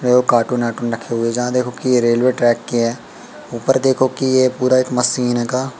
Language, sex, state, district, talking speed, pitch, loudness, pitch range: Hindi, male, Madhya Pradesh, Katni, 215 wpm, 125 Hz, -17 LUFS, 120-130 Hz